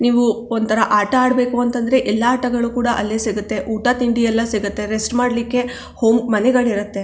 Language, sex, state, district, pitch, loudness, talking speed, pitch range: Kannada, female, Karnataka, Chamarajanagar, 235 Hz, -18 LUFS, 160 wpm, 220-245 Hz